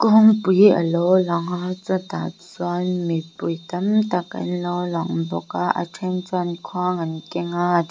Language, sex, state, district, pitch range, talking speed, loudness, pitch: Mizo, female, Mizoram, Aizawl, 170-185 Hz, 175 wpm, -21 LUFS, 180 Hz